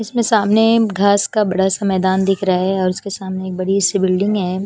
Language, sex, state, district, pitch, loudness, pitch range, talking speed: Hindi, female, Chandigarh, Chandigarh, 195 Hz, -16 LUFS, 190-210 Hz, 230 wpm